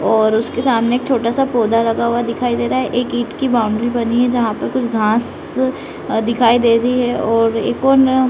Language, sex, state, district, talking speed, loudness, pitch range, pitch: Hindi, female, Uttarakhand, Uttarkashi, 225 wpm, -16 LUFS, 230-250 Hz, 240 Hz